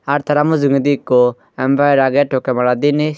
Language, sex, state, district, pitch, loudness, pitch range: Chakma, female, Tripura, Dhalai, 140 Hz, -15 LUFS, 130-145 Hz